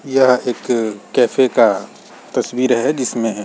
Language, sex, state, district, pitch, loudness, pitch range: Hindi, male, Chhattisgarh, Rajnandgaon, 125 Hz, -16 LUFS, 115-130 Hz